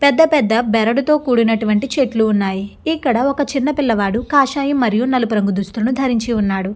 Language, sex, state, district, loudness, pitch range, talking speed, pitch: Telugu, female, Andhra Pradesh, Guntur, -16 LUFS, 220-275 Hz, 160 wpm, 235 Hz